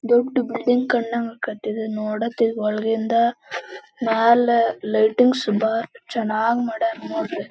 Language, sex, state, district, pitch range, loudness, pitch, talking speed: Kannada, female, Karnataka, Belgaum, 220-245 Hz, -21 LUFS, 230 Hz, 65 wpm